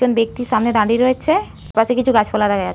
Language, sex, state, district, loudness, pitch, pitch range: Bengali, female, West Bengal, North 24 Parganas, -17 LUFS, 230 Hz, 215-250 Hz